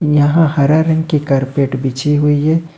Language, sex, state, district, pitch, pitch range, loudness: Hindi, male, Jharkhand, Ranchi, 150 Hz, 140-160 Hz, -14 LUFS